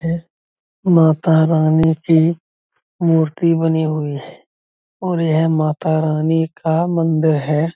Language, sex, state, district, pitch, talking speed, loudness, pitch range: Hindi, male, Uttar Pradesh, Budaun, 160 Hz, 100 wpm, -16 LUFS, 155-165 Hz